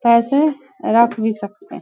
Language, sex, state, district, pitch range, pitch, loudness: Hindi, female, Bihar, Vaishali, 220-275 Hz, 235 Hz, -17 LUFS